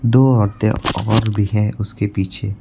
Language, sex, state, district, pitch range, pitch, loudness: Hindi, male, Uttar Pradesh, Lucknow, 100-110 Hz, 105 Hz, -17 LUFS